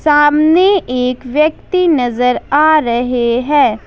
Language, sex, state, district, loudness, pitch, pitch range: Hindi, female, Jharkhand, Ranchi, -12 LUFS, 295 Hz, 250-315 Hz